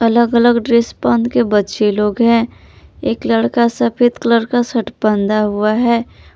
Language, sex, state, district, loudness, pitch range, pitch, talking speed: Hindi, female, Jharkhand, Palamu, -14 LUFS, 215-235 Hz, 235 Hz, 160 wpm